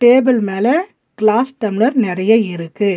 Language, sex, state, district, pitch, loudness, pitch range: Tamil, female, Tamil Nadu, Nilgiris, 225 Hz, -15 LUFS, 200-245 Hz